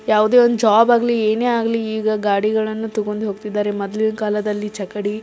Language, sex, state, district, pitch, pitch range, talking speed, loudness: Kannada, female, Karnataka, Belgaum, 215 Hz, 210-225 Hz, 170 wpm, -18 LUFS